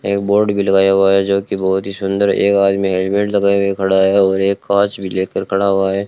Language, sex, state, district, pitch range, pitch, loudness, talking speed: Hindi, male, Rajasthan, Bikaner, 95-100 Hz, 100 Hz, -15 LUFS, 255 wpm